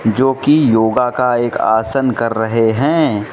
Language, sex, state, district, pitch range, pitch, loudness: Hindi, male, Mizoram, Aizawl, 110-130 Hz, 120 Hz, -14 LUFS